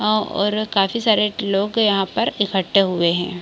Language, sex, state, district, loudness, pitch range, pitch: Hindi, female, Bihar, Kishanganj, -19 LUFS, 195-215 Hz, 200 Hz